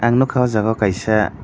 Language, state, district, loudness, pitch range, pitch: Kokborok, Tripura, Dhalai, -17 LUFS, 105-125 Hz, 110 Hz